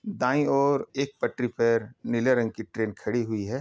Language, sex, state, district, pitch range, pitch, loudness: Hindi, male, Uttar Pradesh, Deoria, 115-140 Hz, 125 Hz, -26 LUFS